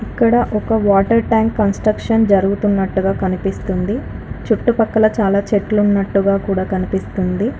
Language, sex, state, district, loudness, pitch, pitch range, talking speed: Telugu, female, Telangana, Karimnagar, -16 LUFS, 200 Hz, 195-220 Hz, 110 wpm